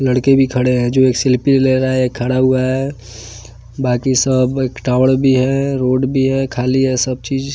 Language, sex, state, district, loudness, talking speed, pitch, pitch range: Hindi, male, Bihar, West Champaran, -15 LUFS, 215 wpm, 130 Hz, 125-135 Hz